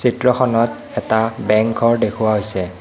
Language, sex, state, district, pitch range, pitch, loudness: Assamese, male, Assam, Kamrup Metropolitan, 110-115 Hz, 110 Hz, -17 LUFS